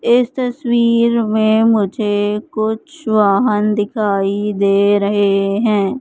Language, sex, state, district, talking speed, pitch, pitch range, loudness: Hindi, male, Madhya Pradesh, Katni, 100 wpm, 210 Hz, 205-235 Hz, -15 LUFS